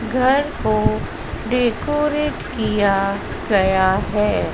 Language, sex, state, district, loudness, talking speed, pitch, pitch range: Hindi, female, Madhya Pradesh, Dhar, -19 LUFS, 80 wpm, 220 Hz, 200-260 Hz